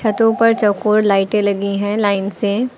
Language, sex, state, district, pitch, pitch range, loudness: Hindi, female, Uttar Pradesh, Lucknow, 210 Hz, 200-225 Hz, -16 LUFS